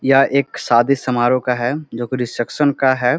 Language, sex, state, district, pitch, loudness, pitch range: Hindi, male, Bihar, Supaul, 130 Hz, -17 LUFS, 120-140 Hz